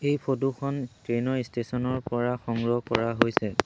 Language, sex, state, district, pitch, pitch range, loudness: Assamese, male, Assam, Sonitpur, 125 Hz, 120-135 Hz, -28 LUFS